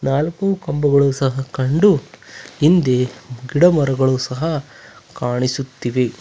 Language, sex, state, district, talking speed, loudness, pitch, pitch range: Kannada, male, Karnataka, Bangalore, 85 wpm, -18 LUFS, 135 Hz, 130-155 Hz